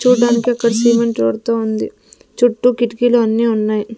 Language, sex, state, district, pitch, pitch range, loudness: Telugu, female, Andhra Pradesh, Sri Satya Sai, 235 Hz, 225-240 Hz, -15 LUFS